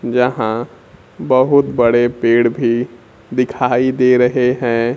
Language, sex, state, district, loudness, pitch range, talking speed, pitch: Hindi, male, Bihar, Kaimur, -15 LUFS, 120-125 Hz, 110 wpm, 125 Hz